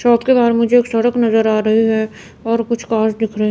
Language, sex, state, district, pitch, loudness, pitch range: Hindi, female, Chandigarh, Chandigarh, 230 Hz, -15 LUFS, 220-235 Hz